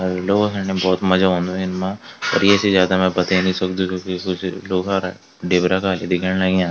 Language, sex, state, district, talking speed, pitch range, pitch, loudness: Garhwali, male, Uttarakhand, Tehri Garhwal, 205 wpm, 90-95 Hz, 95 Hz, -19 LUFS